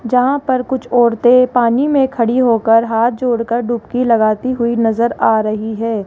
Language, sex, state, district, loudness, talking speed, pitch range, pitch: Hindi, female, Rajasthan, Jaipur, -14 LUFS, 170 wpm, 230-250 Hz, 235 Hz